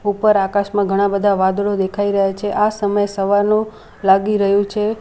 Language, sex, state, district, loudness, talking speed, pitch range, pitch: Gujarati, female, Gujarat, Valsad, -17 LUFS, 170 wpm, 200-210 Hz, 205 Hz